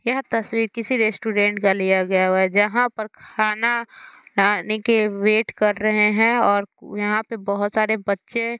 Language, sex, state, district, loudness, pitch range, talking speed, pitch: Hindi, female, Bihar, Muzaffarpur, -20 LUFS, 205-230 Hz, 175 wpm, 215 Hz